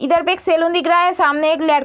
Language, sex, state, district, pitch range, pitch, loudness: Hindi, female, Uttar Pradesh, Deoria, 310-350 Hz, 335 Hz, -15 LUFS